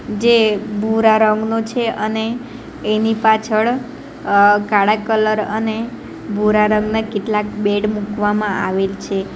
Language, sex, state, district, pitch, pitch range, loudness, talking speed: Gujarati, female, Gujarat, Valsad, 215 Hz, 210-220 Hz, -17 LUFS, 115 wpm